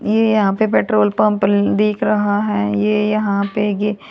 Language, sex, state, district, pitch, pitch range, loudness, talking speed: Hindi, female, Haryana, Rohtak, 210 Hz, 205-210 Hz, -16 LUFS, 175 wpm